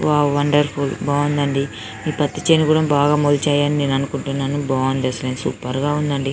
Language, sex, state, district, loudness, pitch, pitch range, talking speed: Telugu, female, Telangana, Karimnagar, -19 LUFS, 145 Hz, 135-145 Hz, 160 wpm